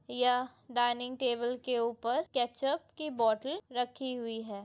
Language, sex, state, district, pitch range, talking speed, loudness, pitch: Hindi, female, Chhattisgarh, Bilaspur, 240-260 Hz, 140 wpm, -33 LUFS, 245 Hz